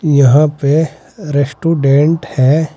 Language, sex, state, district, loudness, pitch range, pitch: Hindi, male, Uttar Pradesh, Saharanpur, -12 LUFS, 140-160 Hz, 150 Hz